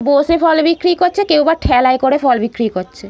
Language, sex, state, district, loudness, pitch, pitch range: Bengali, female, West Bengal, Malda, -13 LUFS, 285 Hz, 250-330 Hz